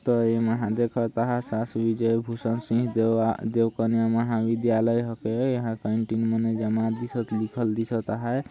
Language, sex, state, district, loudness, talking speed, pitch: Sadri, male, Chhattisgarh, Jashpur, -26 LUFS, 150 wpm, 115 Hz